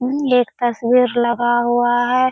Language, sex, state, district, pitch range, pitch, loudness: Hindi, female, Bihar, Purnia, 240-250 Hz, 245 Hz, -16 LUFS